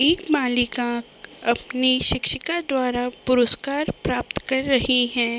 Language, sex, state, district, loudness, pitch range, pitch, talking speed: Hindi, female, Uttar Pradesh, Deoria, -20 LUFS, 245-275 Hz, 255 Hz, 110 wpm